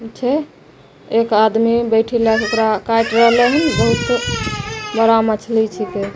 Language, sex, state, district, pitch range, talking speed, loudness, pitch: Maithili, female, Bihar, Begusarai, 220-235 Hz, 145 wpm, -16 LUFS, 225 Hz